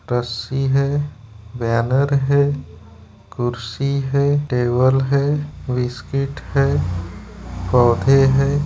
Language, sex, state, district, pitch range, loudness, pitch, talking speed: Hindi, male, Bihar, Gopalganj, 115-140 Hz, -19 LUFS, 125 Hz, 85 wpm